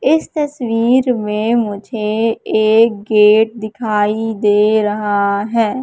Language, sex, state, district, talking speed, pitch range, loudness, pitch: Hindi, female, Madhya Pradesh, Katni, 105 wpm, 210-230 Hz, -15 LUFS, 220 Hz